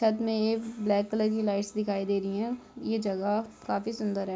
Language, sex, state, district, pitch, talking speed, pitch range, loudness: Hindi, female, Jharkhand, Jamtara, 215 Hz, 220 wpm, 200-220 Hz, -30 LUFS